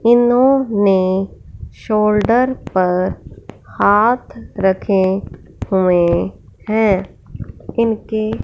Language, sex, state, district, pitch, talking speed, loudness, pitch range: Hindi, male, Punjab, Fazilka, 205 Hz, 55 wpm, -16 LUFS, 185-225 Hz